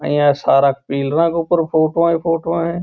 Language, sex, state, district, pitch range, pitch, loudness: Marwari, male, Rajasthan, Churu, 145-170 Hz, 165 Hz, -16 LUFS